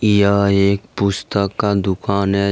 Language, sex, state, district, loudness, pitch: Hindi, male, Jharkhand, Ranchi, -17 LUFS, 100 Hz